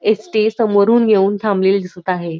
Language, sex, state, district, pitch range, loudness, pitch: Marathi, female, Maharashtra, Dhule, 190-215 Hz, -15 LUFS, 205 Hz